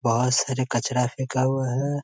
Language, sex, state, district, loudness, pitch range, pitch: Hindi, male, Bihar, Muzaffarpur, -24 LUFS, 125-130 Hz, 130 Hz